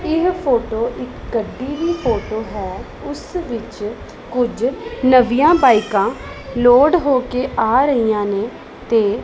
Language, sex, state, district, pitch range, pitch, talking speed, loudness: Punjabi, female, Punjab, Pathankot, 215-275 Hz, 245 Hz, 125 wpm, -17 LUFS